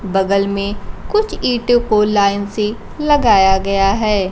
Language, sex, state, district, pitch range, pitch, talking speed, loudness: Hindi, female, Bihar, Kaimur, 195-240 Hz, 210 Hz, 140 wpm, -15 LUFS